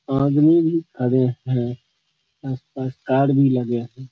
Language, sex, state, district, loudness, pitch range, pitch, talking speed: Hindi, male, Bihar, Madhepura, -20 LUFS, 125-140 Hz, 130 Hz, 100 wpm